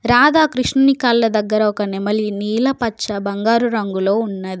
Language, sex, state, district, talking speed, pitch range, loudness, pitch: Telugu, female, Telangana, Komaram Bheem, 130 wpm, 205-245 Hz, -17 LUFS, 220 Hz